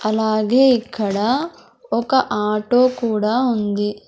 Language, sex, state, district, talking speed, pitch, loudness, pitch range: Telugu, male, Andhra Pradesh, Sri Satya Sai, 90 wpm, 225 Hz, -18 LUFS, 210-250 Hz